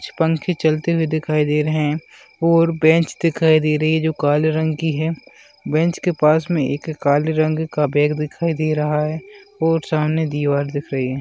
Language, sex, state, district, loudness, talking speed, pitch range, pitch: Hindi, male, Bihar, Madhepura, -19 LUFS, 195 wpm, 150-160 Hz, 155 Hz